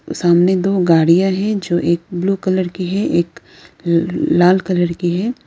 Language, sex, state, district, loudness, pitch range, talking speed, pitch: Hindi, female, Arunachal Pradesh, Lower Dibang Valley, -16 LUFS, 170-190 Hz, 175 wpm, 180 Hz